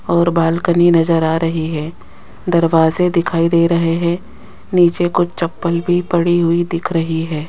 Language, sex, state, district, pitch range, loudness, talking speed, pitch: Hindi, female, Rajasthan, Jaipur, 165-175 Hz, -15 LUFS, 160 wpm, 170 Hz